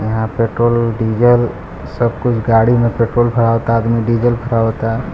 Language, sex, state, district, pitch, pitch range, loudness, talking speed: Hindi, male, Bihar, Gopalganj, 115 Hz, 115-120 Hz, -14 LUFS, 165 wpm